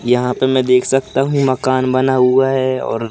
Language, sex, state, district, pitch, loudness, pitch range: Hindi, male, Madhya Pradesh, Katni, 130 Hz, -15 LUFS, 125-135 Hz